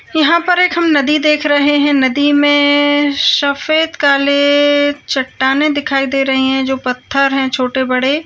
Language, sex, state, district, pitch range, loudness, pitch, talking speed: Hindi, female, Uttarakhand, Uttarkashi, 270-290 Hz, -12 LUFS, 285 Hz, 160 wpm